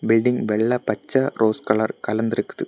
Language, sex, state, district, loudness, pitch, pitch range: Tamil, male, Tamil Nadu, Kanyakumari, -21 LUFS, 115 Hz, 110-125 Hz